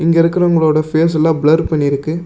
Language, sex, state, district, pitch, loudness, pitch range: Tamil, male, Tamil Nadu, Namakkal, 160 Hz, -13 LUFS, 155-165 Hz